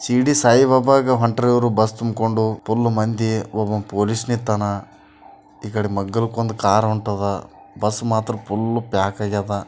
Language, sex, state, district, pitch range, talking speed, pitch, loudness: Kannada, male, Karnataka, Bijapur, 105-115 Hz, 135 wpm, 110 Hz, -19 LUFS